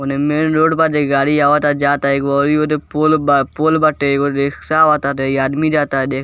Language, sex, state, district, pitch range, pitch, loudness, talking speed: Bhojpuri, male, Bihar, East Champaran, 140-155 Hz, 145 Hz, -15 LUFS, 230 wpm